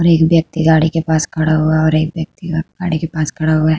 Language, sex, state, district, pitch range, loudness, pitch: Hindi, female, Uttar Pradesh, Hamirpur, 155-165 Hz, -15 LUFS, 160 Hz